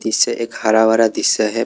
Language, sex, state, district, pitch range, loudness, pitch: Hindi, male, Assam, Kamrup Metropolitan, 110-115 Hz, -15 LUFS, 110 Hz